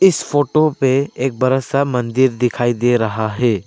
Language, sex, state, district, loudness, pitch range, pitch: Hindi, male, Arunachal Pradesh, Lower Dibang Valley, -16 LUFS, 120-140 Hz, 130 Hz